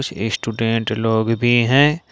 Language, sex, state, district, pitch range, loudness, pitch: Hindi, male, Jharkhand, Ranchi, 110-120 Hz, -17 LUFS, 115 Hz